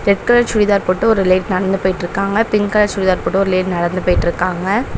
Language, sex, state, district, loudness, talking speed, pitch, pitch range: Tamil, female, Tamil Nadu, Chennai, -15 LUFS, 190 wpm, 195 Hz, 185-210 Hz